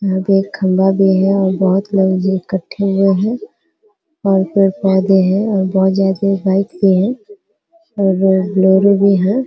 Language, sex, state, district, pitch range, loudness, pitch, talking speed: Hindi, female, Uttar Pradesh, Ghazipur, 190-200 Hz, -14 LUFS, 195 Hz, 170 wpm